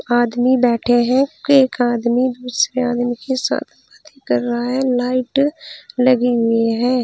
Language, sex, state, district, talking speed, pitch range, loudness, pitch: Hindi, female, Uttar Pradesh, Saharanpur, 145 wpm, 240-260 Hz, -17 LUFS, 250 Hz